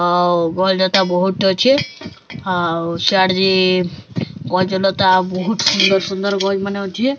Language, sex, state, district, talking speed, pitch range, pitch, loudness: Odia, female, Odisha, Sambalpur, 125 wpm, 180-195 Hz, 190 Hz, -16 LUFS